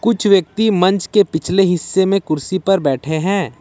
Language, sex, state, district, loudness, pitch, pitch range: Hindi, male, Jharkhand, Ranchi, -16 LUFS, 190 Hz, 160-200 Hz